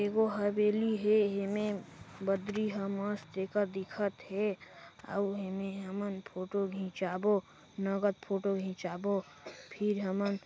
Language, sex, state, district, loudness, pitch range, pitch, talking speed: Chhattisgarhi, female, Chhattisgarh, Sarguja, -34 LUFS, 190-205 Hz, 200 Hz, 120 wpm